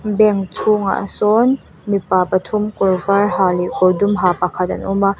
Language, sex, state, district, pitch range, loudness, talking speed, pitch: Mizo, female, Mizoram, Aizawl, 185-210 Hz, -16 LUFS, 185 wpm, 195 Hz